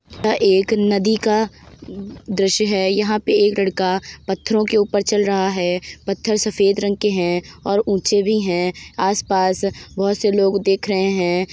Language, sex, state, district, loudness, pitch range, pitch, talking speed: Hindi, female, Uttar Pradesh, Deoria, -18 LUFS, 190-210 Hz, 200 Hz, 165 wpm